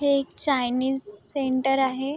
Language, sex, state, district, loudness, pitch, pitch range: Marathi, female, Maharashtra, Chandrapur, -25 LUFS, 270 Hz, 260-280 Hz